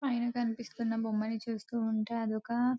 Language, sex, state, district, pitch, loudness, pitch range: Telugu, female, Telangana, Nalgonda, 230 Hz, -34 LUFS, 220-240 Hz